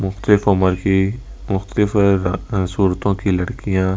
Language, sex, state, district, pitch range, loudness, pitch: Hindi, male, Delhi, New Delhi, 95-100 Hz, -18 LUFS, 95 Hz